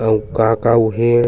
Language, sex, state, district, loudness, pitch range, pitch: Chhattisgarhi, male, Chhattisgarh, Sukma, -15 LUFS, 110-115 Hz, 115 Hz